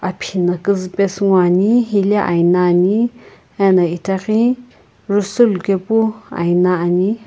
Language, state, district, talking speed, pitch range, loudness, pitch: Sumi, Nagaland, Kohima, 80 wpm, 180-215 Hz, -16 LUFS, 195 Hz